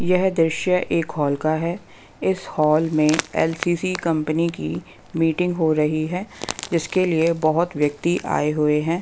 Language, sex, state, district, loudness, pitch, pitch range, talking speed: Hindi, female, Bihar, West Champaran, -21 LUFS, 165 Hz, 155-175 Hz, 155 wpm